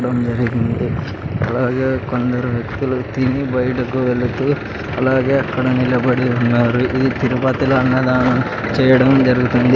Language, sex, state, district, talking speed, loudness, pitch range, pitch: Telugu, male, Andhra Pradesh, Sri Satya Sai, 105 wpm, -17 LUFS, 125-130 Hz, 125 Hz